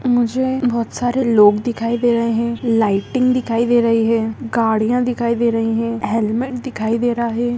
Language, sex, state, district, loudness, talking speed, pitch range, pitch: Hindi, female, Andhra Pradesh, Anantapur, -17 LUFS, 180 wpm, 225-245 Hz, 235 Hz